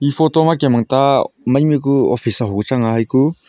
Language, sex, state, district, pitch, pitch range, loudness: Wancho, male, Arunachal Pradesh, Longding, 135 Hz, 120-145 Hz, -15 LUFS